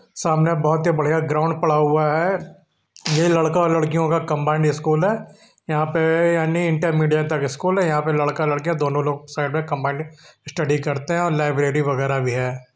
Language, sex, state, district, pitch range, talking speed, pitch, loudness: Hindi, male, Uttar Pradesh, Hamirpur, 150-165 Hz, 195 wpm, 155 Hz, -20 LUFS